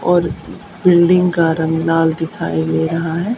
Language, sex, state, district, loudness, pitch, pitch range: Hindi, female, Haryana, Charkhi Dadri, -15 LUFS, 165 Hz, 160-180 Hz